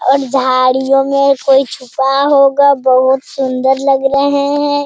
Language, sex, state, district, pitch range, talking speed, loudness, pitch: Hindi, female, Bihar, Jamui, 265-280 Hz, 135 wpm, -12 LUFS, 270 Hz